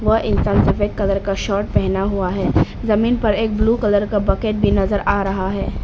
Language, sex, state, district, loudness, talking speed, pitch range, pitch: Hindi, female, Arunachal Pradesh, Papum Pare, -18 LUFS, 215 wpm, 195-215 Hz, 205 Hz